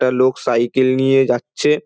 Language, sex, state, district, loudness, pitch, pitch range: Bengali, male, West Bengal, Dakshin Dinajpur, -16 LUFS, 130 Hz, 125-135 Hz